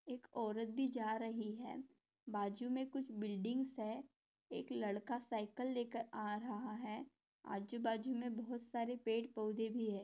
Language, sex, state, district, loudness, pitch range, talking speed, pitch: Hindi, female, Maharashtra, Nagpur, -44 LUFS, 215-250 Hz, 155 wpm, 230 Hz